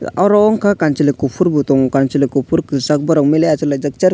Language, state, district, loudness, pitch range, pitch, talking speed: Kokborok, Tripura, West Tripura, -14 LUFS, 140-165 Hz, 150 Hz, 200 wpm